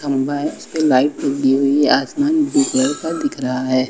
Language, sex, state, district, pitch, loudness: Hindi, female, Uttar Pradesh, Lucknow, 145 Hz, -17 LUFS